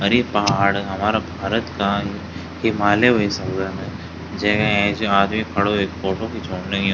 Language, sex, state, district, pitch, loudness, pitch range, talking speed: Garhwali, male, Uttarakhand, Tehri Garhwal, 100 Hz, -20 LUFS, 95-105 Hz, 145 wpm